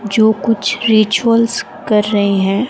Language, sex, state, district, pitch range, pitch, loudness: Hindi, female, Rajasthan, Bikaner, 205-230 Hz, 220 Hz, -14 LUFS